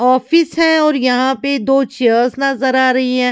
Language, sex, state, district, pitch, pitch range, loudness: Hindi, female, Maharashtra, Mumbai Suburban, 260 Hz, 255-280 Hz, -14 LUFS